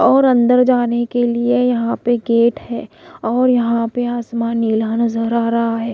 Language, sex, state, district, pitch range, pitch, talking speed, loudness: Hindi, female, Odisha, Malkangiri, 230-245 Hz, 235 Hz, 180 wpm, -16 LUFS